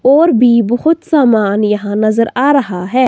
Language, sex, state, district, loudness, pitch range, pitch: Hindi, female, Himachal Pradesh, Shimla, -12 LUFS, 215-275 Hz, 240 Hz